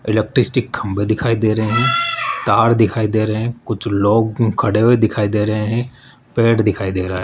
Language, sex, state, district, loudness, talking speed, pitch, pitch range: Hindi, male, Rajasthan, Jaipur, -16 LUFS, 200 wpm, 110 Hz, 105-115 Hz